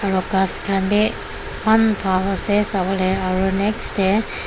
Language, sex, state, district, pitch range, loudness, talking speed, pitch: Nagamese, female, Nagaland, Dimapur, 190-210 Hz, -17 LUFS, 145 wpm, 195 Hz